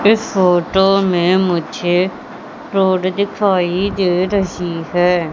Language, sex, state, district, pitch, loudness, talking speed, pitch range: Hindi, female, Madhya Pradesh, Katni, 185 Hz, -16 LUFS, 100 wpm, 175-195 Hz